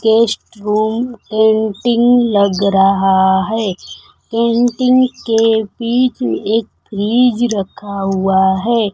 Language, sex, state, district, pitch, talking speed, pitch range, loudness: Hindi, female, Bihar, Kaimur, 220 Hz, 95 wpm, 200-235 Hz, -14 LUFS